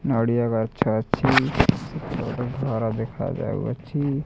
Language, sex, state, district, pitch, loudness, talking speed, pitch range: Odia, male, Odisha, Khordha, 125 Hz, -24 LUFS, 110 wpm, 115-140 Hz